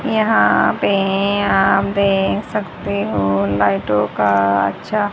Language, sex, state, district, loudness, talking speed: Hindi, female, Haryana, Rohtak, -16 LUFS, 105 wpm